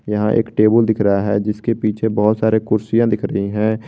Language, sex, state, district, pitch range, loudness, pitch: Hindi, male, Jharkhand, Garhwa, 105-110 Hz, -17 LUFS, 110 Hz